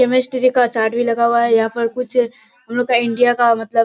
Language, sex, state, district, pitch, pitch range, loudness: Hindi, female, Bihar, Kishanganj, 240 Hz, 230-250 Hz, -16 LUFS